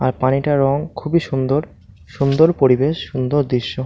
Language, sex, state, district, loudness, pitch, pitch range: Bengali, male, West Bengal, Malda, -17 LUFS, 135 Hz, 130-145 Hz